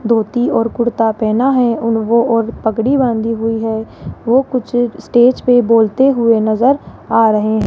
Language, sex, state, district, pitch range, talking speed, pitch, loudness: Hindi, female, Rajasthan, Jaipur, 225-245 Hz, 170 wpm, 230 Hz, -14 LUFS